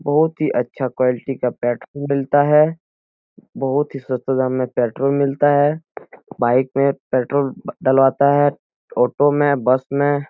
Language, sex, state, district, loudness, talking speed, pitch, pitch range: Hindi, male, Bihar, Jahanabad, -18 LUFS, 145 wpm, 135 Hz, 130-145 Hz